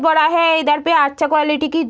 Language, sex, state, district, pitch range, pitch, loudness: Hindi, female, Uttar Pradesh, Deoria, 300-325 Hz, 310 Hz, -15 LUFS